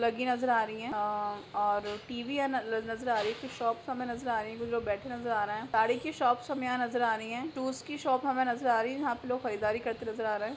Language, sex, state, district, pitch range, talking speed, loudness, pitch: Hindi, female, Chhattisgarh, Raigarh, 220-255 Hz, 295 wpm, -32 LUFS, 235 Hz